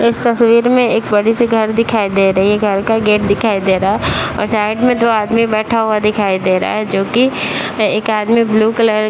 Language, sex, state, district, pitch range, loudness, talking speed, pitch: Hindi, female, Bihar, Saharsa, 210-230 Hz, -13 LUFS, 240 wpm, 215 Hz